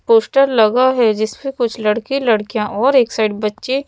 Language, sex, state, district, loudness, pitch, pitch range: Hindi, female, Madhya Pradesh, Bhopal, -16 LUFS, 235 Hz, 215-270 Hz